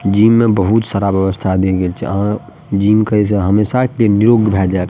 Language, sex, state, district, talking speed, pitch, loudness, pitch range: Maithili, male, Bihar, Madhepura, 235 wpm, 105 Hz, -13 LUFS, 95-110 Hz